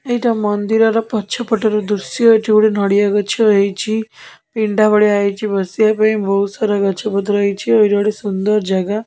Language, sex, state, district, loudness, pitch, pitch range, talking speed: Odia, female, Odisha, Khordha, -15 LUFS, 210 Hz, 200-220 Hz, 170 wpm